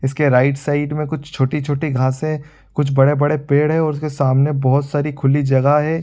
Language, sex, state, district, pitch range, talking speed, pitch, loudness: Hindi, male, Bihar, Supaul, 135-150 Hz, 190 wpm, 145 Hz, -17 LUFS